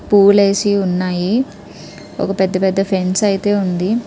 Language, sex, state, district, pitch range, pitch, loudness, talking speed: Telugu, female, Andhra Pradesh, Krishna, 185-205 Hz, 195 Hz, -15 LUFS, 120 wpm